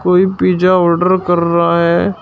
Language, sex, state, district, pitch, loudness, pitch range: Hindi, male, Uttar Pradesh, Shamli, 180 Hz, -12 LUFS, 170-185 Hz